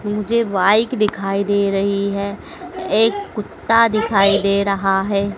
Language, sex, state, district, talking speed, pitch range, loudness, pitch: Hindi, female, Madhya Pradesh, Dhar, 135 wpm, 200-220 Hz, -17 LUFS, 205 Hz